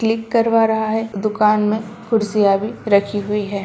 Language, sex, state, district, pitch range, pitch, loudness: Hindi, female, Bihar, Sitamarhi, 205-225 Hz, 215 Hz, -18 LUFS